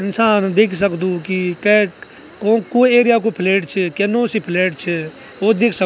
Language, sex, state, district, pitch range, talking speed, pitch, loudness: Garhwali, male, Uttarakhand, Tehri Garhwal, 185-225 Hz, 205 wpm, 200 Hz, -16 LUFS